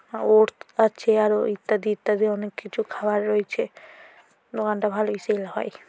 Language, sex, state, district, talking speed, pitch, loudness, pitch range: Bengali, female, West Bengal, North 24 Parganas, 145 wpm, 215 Hz, -23 LUFS, 210-215 Hz